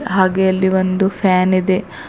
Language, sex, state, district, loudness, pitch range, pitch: Kannada, female, Karnataka, Bidar, -15 LUFS, 185-190 Hz, 190 Hz